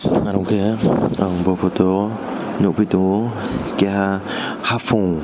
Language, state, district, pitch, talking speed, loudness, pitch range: Kokborok, Tripura, West Tripura, 100 Hz, 90 wpm, -19 LUFS, 95-105 Hz